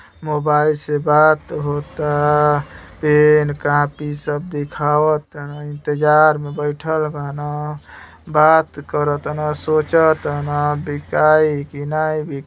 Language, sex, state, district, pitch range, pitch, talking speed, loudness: Bhojpuri, male, Uttar Pradesh, Gorakhpur, 145-155 Hz, 150 Hz, 100 wpm, -17 LUFS